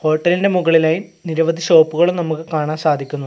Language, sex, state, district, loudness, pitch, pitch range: Malayalam, male, Kerala, Kasaragod, -16 LUFS, 160 Hz, 155-175 Hz